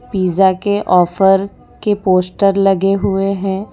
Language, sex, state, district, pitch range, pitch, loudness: Hindi, female, Gujarat, Valsad, 190-200 Hz, 195 Hz, -14 LUFS